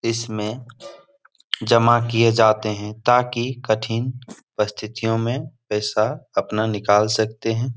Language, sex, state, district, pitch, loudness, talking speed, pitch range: Hindi, male, Bihar, Jahanabad, 115 Hz, -21 LUFS, 115 wpm, 110-125 Hz